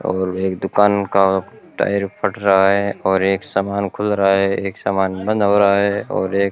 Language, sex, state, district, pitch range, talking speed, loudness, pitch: Hindi, male, Rajasthan, Bikaner, 95-100 Hz, 210 wpm, -17 LUFS, 100 Hz